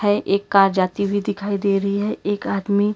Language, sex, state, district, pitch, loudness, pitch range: Hindi, female, Karnataka, Bangalore, 200 Hz, -20 LUFS, 195-205 Hz